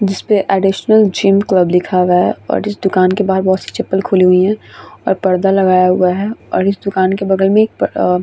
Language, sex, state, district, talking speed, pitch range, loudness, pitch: Hindi, female, Bihar, Vaishali, 225 wpm, 185-200 Hz, -13 LUFS, 190 Hz